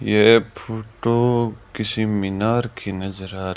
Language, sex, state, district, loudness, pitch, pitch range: Hindi, male, Rajasthan, Bikaner, -20 LUFS, 110 Hz, 100-115 Hz